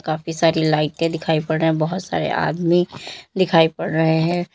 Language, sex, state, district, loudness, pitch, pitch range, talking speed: Hindi, female, Uttar Pradesh, Lalitpur, -19 LUFS, 160 Hz, 160-170 Hz, 185 wpm